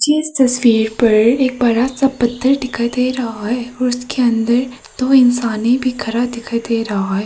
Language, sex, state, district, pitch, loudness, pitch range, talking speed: Hindi, female, Arunachal Pradesh, Papum Pare, 245 Hz, -15 LUFS, 230-255 Hz, 175 wpm